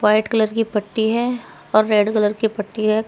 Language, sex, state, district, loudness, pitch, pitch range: Hindi, female, Uttar Pradesh, Shamli, -19 LUFS, 215 Hz, 210-225 Hz